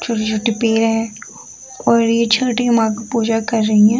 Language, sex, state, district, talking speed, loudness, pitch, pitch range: Hindi, female, Bihar, Vaishali, 150 wpm, -16 LUFS, 225 Hz, 225-235 Hz